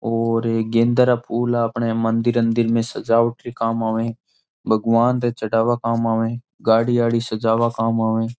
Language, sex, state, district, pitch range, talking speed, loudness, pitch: Marwari, male, Rajasthan, Nagaur, 115-120 Hz, 155 wpm, -20 LUFS, 115 Hz